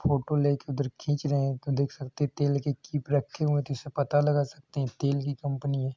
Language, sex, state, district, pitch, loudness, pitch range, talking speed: Hindi, male, Uttar Pradesh, Hamirpur, 140 Hz, -29 LUFS, 140-145 Hz, 260 wpm